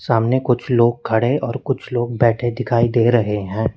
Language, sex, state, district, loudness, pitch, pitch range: Hindi, male, Uttar Pradesh, Lalitpur, -18 LUFS, 120 Hz, 115-125 Hz